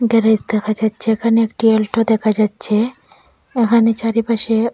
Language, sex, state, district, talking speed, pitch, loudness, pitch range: Bengali, female, Assam, Hailakandi, 125 wpm, 225 Hz, -16 LUFS, 215-230 Hz